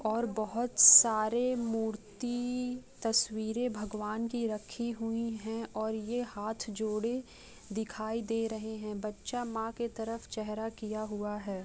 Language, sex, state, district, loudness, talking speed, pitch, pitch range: Hindi, female, West Bengal, Purulia, -31 LUFS, 135 wpm, 225 Hz, 215-235 Hz